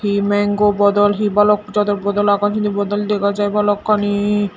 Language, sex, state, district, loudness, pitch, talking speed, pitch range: Chakma, female, Tripura, Dhalai, -16 LUFS, 205 Hz, 170 wpm, 205-210 Hz